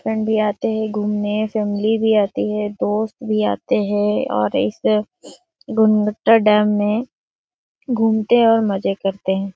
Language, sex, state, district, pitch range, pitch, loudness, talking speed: Hindi, female, Chhattisgarh, Sarguja, 205-220 Hz, 210 Hz, -18 LUFS, 140 wpm